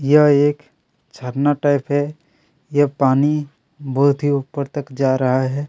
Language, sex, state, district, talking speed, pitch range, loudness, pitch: Hindi, male, Chhattisgarh, Kabirdham, 150 wpm, 135-145 Hz, -18 LUFS, 145 Hz